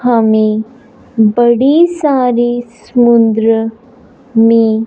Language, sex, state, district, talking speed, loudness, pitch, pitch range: Hindi, male, Punjab, Fazilka, 75 wpm, -11 LUFS, 235 Hz, 225-250 Hz